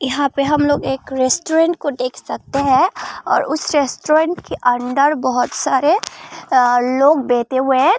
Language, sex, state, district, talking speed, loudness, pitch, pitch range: Hindi, female, Tripura, Unakoti, 160 wpm, -16 LUFS, 275 Hz, 255-305 Hz